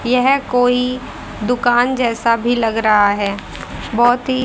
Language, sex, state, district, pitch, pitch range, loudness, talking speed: Hindi, female, Haryana, Rohtak, 245 Hz, 225-250 Hz, -16 LUFS, 135 wpm